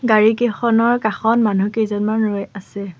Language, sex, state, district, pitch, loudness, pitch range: Assamese, female, Assam, Sonitpur, 220 Hz, -17 LUFS, 200-230 Hz